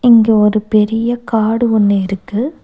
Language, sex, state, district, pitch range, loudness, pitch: Tamil, female, Tamil Nadu, Nilgiris, 210-235 Hz, -13 LUFS, 220 Hz